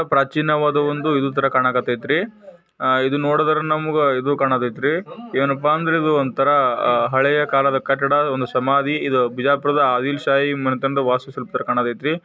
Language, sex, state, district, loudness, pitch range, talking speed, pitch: Kannada, male, Karnataka, Bijapur, -19 LUFS, 130-150 Hz, 100 wpm, 140 Hz